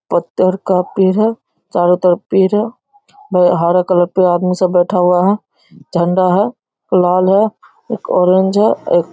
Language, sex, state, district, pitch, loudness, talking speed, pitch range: Hindi, male, Bihar, Darbhanga, 185 Hz, -14 LUFS, 165 wpm, 180-200 Hz